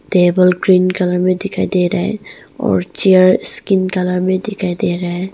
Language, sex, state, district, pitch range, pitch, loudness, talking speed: Hindi, female, Arunachal Pradesh, Longding, 180-190 Hz, 185 Hz, -14 LUFS, 190 wpm